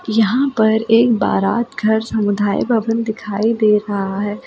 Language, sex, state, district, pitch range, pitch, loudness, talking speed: Hindi, female, Delhi, New Delhi, 205-225 Hz, 220 Hz, -16 LUFS, 160 wpm